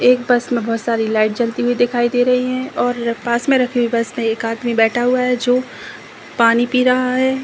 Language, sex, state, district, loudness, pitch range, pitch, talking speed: Hindi, female, Chhattisgarh, Bilaspur, -17 LUFS, 230-250 Hz, 245 Hz, 240 wpm